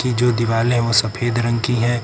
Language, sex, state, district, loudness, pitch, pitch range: Hindi, male, Uttar Pradesh, Lucknow, -18 LUFS, 120 Hz, 115-120 Hz